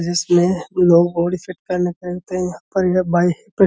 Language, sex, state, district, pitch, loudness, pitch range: Hindi, male, Uttar Pradesh, Budaun, 180 Hz, -18 LUFS, 175-185 Hz